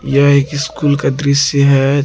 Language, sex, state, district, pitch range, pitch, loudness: Hindi, male, Jharkhand, Garhwa, 140-145 Hz, 140 Hz, -13 LUFS